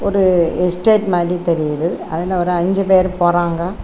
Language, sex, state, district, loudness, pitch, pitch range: Tamil, female, Tamil Nadu, Kanyakumari, -16 LUFS, 180 Hz, 170-185 Hz